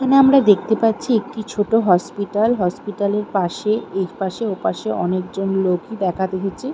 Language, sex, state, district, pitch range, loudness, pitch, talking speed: Bengali, female, West Bengal, Malda, 190-225 Hz, -19 LUFS, 205 Hz, 150 wpm